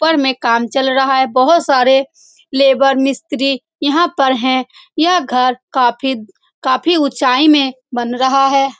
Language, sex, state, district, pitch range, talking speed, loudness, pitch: Hindi, female, Bihar, Saran, 260-290 Hz, 155 wpm, -14 LUFS, 270 Hz